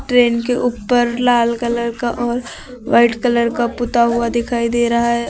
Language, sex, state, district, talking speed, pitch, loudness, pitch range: Hindi, female, Uttar Pradesh, Lucknow, 180 wpm, 235 Hz, -16 LUFS, 235-245 Hz